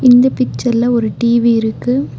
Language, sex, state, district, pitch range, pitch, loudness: Tamil, female, Tamil Nadu, Nilgiris, 235-250 Hz, 240 Hz, -14 LUFS